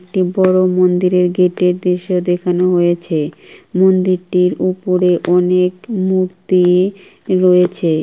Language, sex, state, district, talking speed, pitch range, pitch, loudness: Bengali, female, West Bengal, Kolkata, 105 wpm, 180-185 Hz, 180 Hz, -14 LUFS